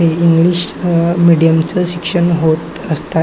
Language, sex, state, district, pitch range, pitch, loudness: Marathi, male, Maharashtra, Chandrapur, 165-175 Hz, 170 Hz, -13 LUFS